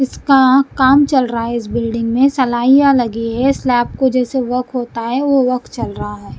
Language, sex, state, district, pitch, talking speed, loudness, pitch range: Hindi, female, Punjab, Kapurthala, 250 Hz, 215 wpm, -14 LUFS, 235-265 Hz